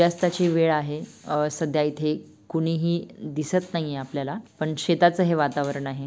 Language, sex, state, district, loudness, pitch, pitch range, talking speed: Marathi, female, Maharashtra, Dhule, -25 LUFS, 155 Hz, 150-170 Hz, 160 wpm